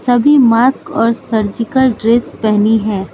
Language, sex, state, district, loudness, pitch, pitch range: Hindi, female, Manipur, Imphal West, -13 LUFS, 230 Hz, 215-250 Hz